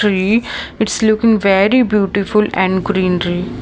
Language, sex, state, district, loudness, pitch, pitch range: English, female, Maharashtra, Mumbai Suburban, -14 LUFS, 200 Hz, 190-215 Hz